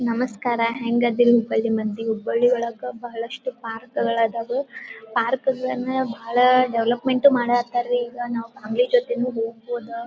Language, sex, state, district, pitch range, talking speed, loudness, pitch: Kannada, female, Karnataka, Dharwad, 230-250 Hz, 120 wpm, -22 LUFS, 240 Hz